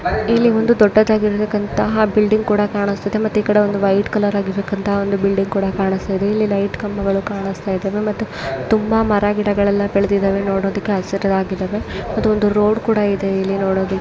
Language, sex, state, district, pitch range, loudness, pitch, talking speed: Kannada, female, Karnataka, Mysore, 195-210 Hz, -17 LUFS, 200 Hz, 135 wpm